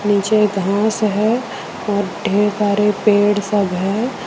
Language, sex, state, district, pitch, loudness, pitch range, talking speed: Hindi, female, Jharkhand, Deoghar, 205 Hz, -17 LUFS, 205-215 Hz, 125 wpm